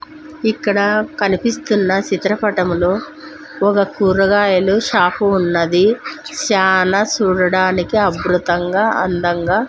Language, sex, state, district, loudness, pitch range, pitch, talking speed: Telugu, female, Andhra Pradesh, Sri Satya Sai, -15 LUFS, 185-215 Hz, 195 Hz, 70 wpm